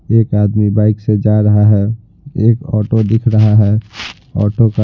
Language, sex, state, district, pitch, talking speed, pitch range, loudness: Hindi, male, Bihar, Patna, 105 Hz, 185 wpm, 105-110 Hz, -13 LUFS